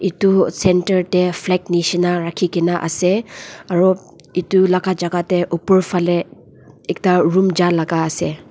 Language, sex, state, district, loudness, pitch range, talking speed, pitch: Nagamese, female, Nagaland, Dimapur, -17 LUFS, 175-185 Hz, 125 wpm, 180 Hz